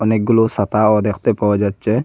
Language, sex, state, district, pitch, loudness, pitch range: Bengali, male, Assam, Hailakandi, 110 Hz, -16 LUFS, 105-115 Hz